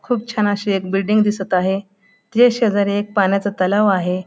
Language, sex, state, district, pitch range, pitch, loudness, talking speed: Marathi, female, Maharashtra, Pune, 195-210 Hz, 200 Hz, -17 LUFS, 180 wpm